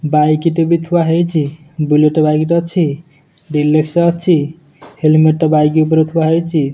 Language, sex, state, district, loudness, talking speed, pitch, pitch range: Odia, male, Odisha, Nuapada, -13 LUFS, 135 wpm, 155 Hz, 150-165 Hz